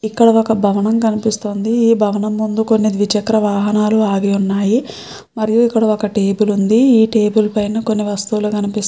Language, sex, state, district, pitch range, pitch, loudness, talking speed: Telugu, female, Andhra Pradesh, Srikakulam, 205-220 Hz, 215 Hz, -15 LUFS, 150 wpm